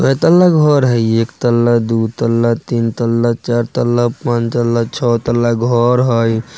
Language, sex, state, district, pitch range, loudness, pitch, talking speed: Maithili, male, Bihar, Vaishali, 115-120 Hz, -14 LUFS, 120 Hz, 165 wpm